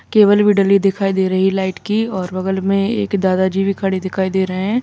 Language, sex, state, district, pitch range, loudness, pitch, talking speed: Hindi, male, Uttar Pradesh, Lalitpur, 190-200 Hz, -16 LUFS, 195 Hz, 235 wpm